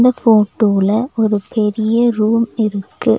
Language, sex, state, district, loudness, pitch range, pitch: Tamil, female, Tamil Nadu, Nilgiris, -15 LUFS, 210-230 Hz, 215 Hz